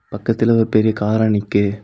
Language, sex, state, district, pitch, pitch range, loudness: Tamil, male, Tamil Nadu, Kanyakumari, 110 Hz, 100-110 Hz, -17 LUFS